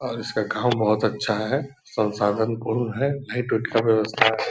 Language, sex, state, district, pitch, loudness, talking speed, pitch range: Hindi, male, Bihar, Purnia, 115 Hz, -23 LUFS, 185 wpm, 110-120 Hz